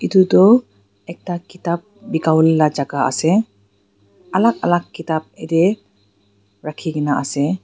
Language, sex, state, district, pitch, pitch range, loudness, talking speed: Nagamese, female, Nagaland, Dimapur, 160 Hz, 130-180 Hz, -17 LUFS, 110 wpm